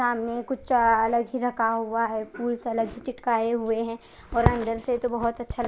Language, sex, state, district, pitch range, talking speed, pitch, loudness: Hindi, female, Odisha, Khordha, 230-240 Hz, 105 wpm, 235 Hz, -26 LUFS